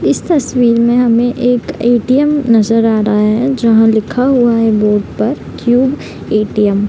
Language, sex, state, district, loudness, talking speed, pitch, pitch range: Hindi, female, Bihar, Madhepura, -12 LUFS, 165 wpm, 235 Hz, 220-250 Hz